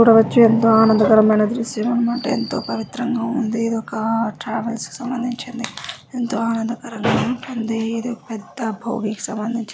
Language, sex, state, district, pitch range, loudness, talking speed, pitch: Telugu, female, Andhra Pradesh, Srikakulam, 225-240 Hz, -19 LUFS, 155 wpm, 230 Hz